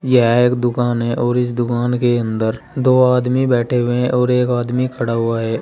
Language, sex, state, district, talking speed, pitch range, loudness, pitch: Hindi, male, Uttar Pradesh, Saharanpur, 215 wpm, 120-125 Hz, -16 LUFS, 120 Hz